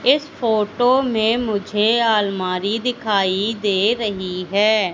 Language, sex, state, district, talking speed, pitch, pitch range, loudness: Hindi, female, Madhya Pradesh, Katni, 110 wpm, 215 Hz, 200-230 Hz, -19 LUFS